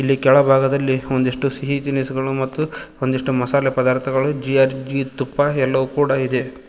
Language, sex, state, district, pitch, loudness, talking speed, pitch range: Kannada, male, Karnataka, Koppal, 135 Hz, -19 LUFS, 135 wpm, 130-140 Hz